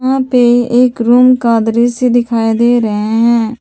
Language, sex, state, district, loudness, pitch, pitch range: Hindi, female, Jharkhand, Palamu, -11 LUFS, 240 Hz, 230-245 Hz